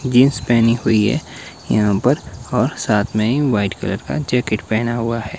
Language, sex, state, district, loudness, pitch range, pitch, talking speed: Hindi, male, Himachal Pradesh, Shimla, -18 LUFS, 110-125 Hz, 115 Hz, 190 wpm